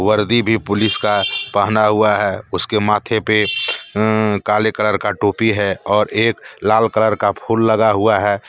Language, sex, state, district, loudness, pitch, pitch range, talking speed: Hindi, male, Jharkhand, Deoghar, -16 LUFS, 105 Hz, 105-110 Hz, 185 wpm